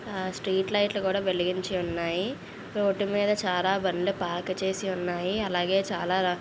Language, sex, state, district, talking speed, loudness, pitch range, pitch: Telugu, female, Andhra Pradesh, Visakhapatnam, 130 wpm, -28 LUFS, 180-195 Hz, 190 Hz